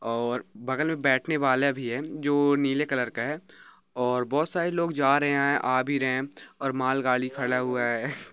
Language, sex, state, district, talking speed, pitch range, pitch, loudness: Hindi, male, Chhattisgarh, Raigarh, 200 wpm, 125-145 Hz, 135 Hz, -26 LUFS